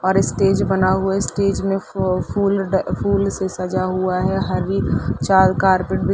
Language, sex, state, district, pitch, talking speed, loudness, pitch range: Hindi, female, Chhattisgarh, Sarguja, 190 Hz, 195 wpm, -19 LUFS, 185-195 Hz